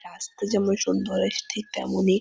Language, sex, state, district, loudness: Bengali, female, West Bengal, Purulia, -26 LUFS